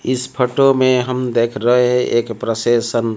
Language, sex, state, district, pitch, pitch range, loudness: Hindi, male, Odisha, Malkangiri, 125 Hz, 115-125 Hz, -16 LUFS